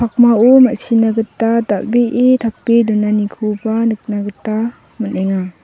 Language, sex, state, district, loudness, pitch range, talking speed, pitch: Garo, female, Meghalaya, South Garo Hills, -14 LUFS, 210-235 Hz, 95 wpm, 225 Hz